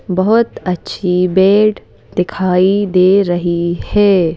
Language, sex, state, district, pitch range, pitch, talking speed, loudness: Hindi, female, Madhya Pradesh, Bhopal, 180-200 Hz, 185 Hz, 95 wpm, -13 LUFS